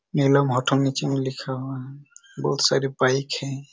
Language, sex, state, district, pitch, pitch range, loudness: Hindi, male, Chhattisgarh, Raigarh, 135 Hz, 130-140 Hz, -23 LUFS